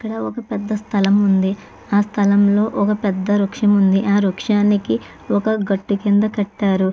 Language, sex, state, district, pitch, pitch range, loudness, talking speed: Telugu, female, Andhra Pradesh, Chittoor, 205 Hz, 200-210 Hz, -18 LUFS, 145 wpm